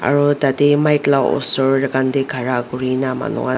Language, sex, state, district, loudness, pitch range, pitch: Nagamese, female, Nagaland, Dimapur, -17 LUFS, 130-145 Hz, 135 Hz